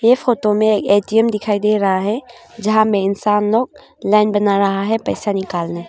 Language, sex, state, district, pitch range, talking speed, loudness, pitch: Hindi, female, Arunachal Pradesh, Longding, 200-225 Hz, 185 wpm, -16 LUFS, 210 Hz